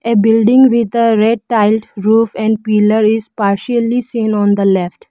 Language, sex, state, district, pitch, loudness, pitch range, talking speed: English, female, Arunachal Pradesh, Lower Dibang Valley, 220 Hz, -13 LUFS, 210-230 Hz, 175 wpm